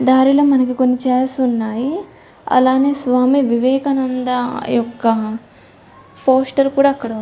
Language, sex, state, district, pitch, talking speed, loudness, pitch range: Telugu, female, Telangana, Karimnagar, 255 Hz, 115 wpm, -16 LUFS, 245-270 Hz